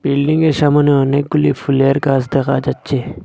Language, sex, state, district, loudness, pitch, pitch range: Bengali, male, Assam, Hailakandi, -14 LUFS, 140 Hz, 135-145 Hz